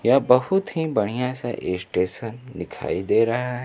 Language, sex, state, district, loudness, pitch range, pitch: Hindi, male, Bihar, Kaimur, -22 LUFS, 110-130 Hz, 125 Hz